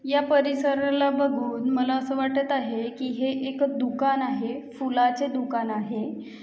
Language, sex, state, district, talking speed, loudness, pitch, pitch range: Marathi, female, Maharashtra, Aurangabad, 140 wpm, -25 LUFS, 265 Hz, 250-275 Hz